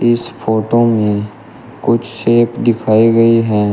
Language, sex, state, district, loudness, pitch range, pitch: Hindi, male, Uttar Pradesh, Shamli, -13 LUFS, 110-120 Hz, 115 Hz